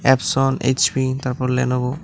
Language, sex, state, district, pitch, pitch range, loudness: Bengali, male, Tripura, West Tripura, 130 Hz, 125-135 Hz, -19 LUFS